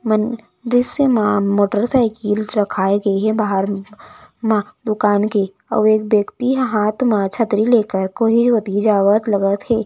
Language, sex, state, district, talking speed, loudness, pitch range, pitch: Chhattisgarhi, female, Chhattisgarh, Raigarh, 150 wpm, -17 LUFS, 205-230 Hz, 215 Hz